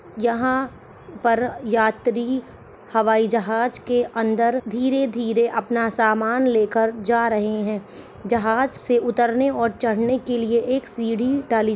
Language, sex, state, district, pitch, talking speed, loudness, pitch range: Hindi, male, Chhattisgarh, Bilaspur, 235 Hz, 120 wpm, -21 LUFS, 225-245 Hz